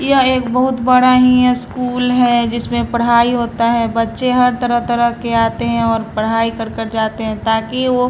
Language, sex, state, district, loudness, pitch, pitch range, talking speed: Hindi, female, Bihar, Patna, -15 LUFS, 235 Hz, 230-250 Hz, 180 wpm